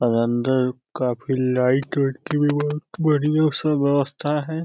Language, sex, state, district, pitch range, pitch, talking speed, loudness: Hindi, male, Uttar Pradesh, Deoria, 125-150 Hz, 140 Hz, 140 wpm, -21 LUFS